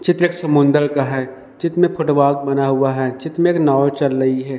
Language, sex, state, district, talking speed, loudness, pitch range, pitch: Hindi, male, Madhya Pradesh, Dhar, 220 wpm, -17 LUFS, 135-160 Hz, 140 Hz